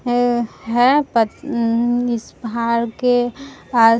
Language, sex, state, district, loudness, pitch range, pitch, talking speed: Hindi, female, Bihar, Vaishali, -18 LUFS, 230-245 Hz, 240 Hz, 105 wpm